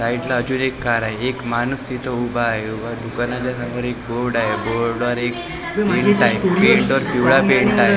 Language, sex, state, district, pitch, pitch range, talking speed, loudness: Marathi, male, Maharashtra, Gondia, 120 Hz, 115-130 Hz, 205 wpm, -19 LUFS